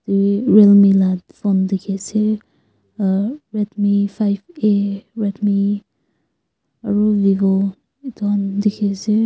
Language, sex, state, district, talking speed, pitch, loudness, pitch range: Nagamese, female, Nagaland, Kohima, 90 wpm, 200 Hz, -17 LUFS, 195-210 Hz